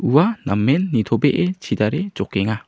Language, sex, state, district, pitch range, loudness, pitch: Garo, male, Meghalaya, South Garo Hills, 110-180 Hz, -19 LUFS, 135 Hz